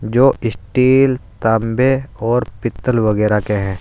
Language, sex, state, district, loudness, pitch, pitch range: Hindi, male, Uttar Pradesh, Saharanpur, -16 LUFS, 115 Hz, 105-130 Hz